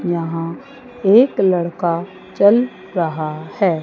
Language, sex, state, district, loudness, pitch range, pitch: Hindi, female, Chandigarh, Chandigarh, -17 LUFS, 165-210 Hz, 185 Hz